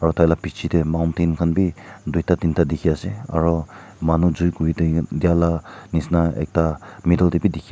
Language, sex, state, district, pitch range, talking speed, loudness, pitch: Nagamese, male, Nagaland, Kohima, 80-85 Hz, 195 wpm, -20 LUFS, 85 Hz